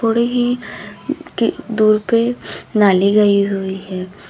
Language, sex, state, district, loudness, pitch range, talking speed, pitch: Hindi, female, Uttar Pradesh, Lalitpur, -17 LUFS, 195-235 Hz, 125 wpm, 210 Hz